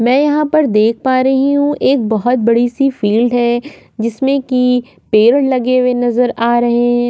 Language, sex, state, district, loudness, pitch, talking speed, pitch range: Hindi, female, Maharashtra, Aurangabad, -13 LUFS, 250 Hz, 175 wpm, 235-270 Hz